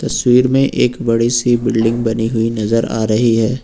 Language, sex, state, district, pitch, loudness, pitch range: Hindi, male, Uttar Pradesh, Lucknow, 115 Hz, -15 LUFS, 115-120 Hz